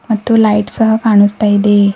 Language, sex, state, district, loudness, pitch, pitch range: Kannada, female, Karnataka, Bidar, -11 LUFS, 210 Hz, 205-220 Hz